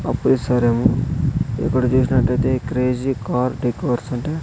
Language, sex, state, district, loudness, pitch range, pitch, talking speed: Telugu, male, Andhra Pradesh, Sri Satya Sai, -19 LUFS, 125-130 Hz, 125 Hz, 95 wpm